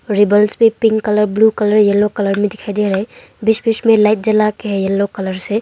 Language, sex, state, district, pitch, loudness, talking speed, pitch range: Hindi, female, Arunachal Pradesh, Longding, 210 Hz, -14 LUFS, 245 wpm, 205-220 Hz